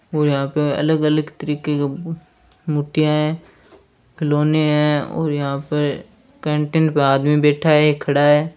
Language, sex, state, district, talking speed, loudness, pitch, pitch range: Hindi, male, Rajasthan, Churu, 145 wpm, -18 LUFS, 150 Hz, 145-155 Hz